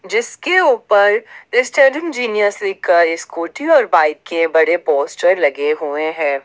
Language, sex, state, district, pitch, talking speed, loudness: Hindi, female, Jharkhand, Ranchi, 195 Hz, 140 wpm, -15 LUFS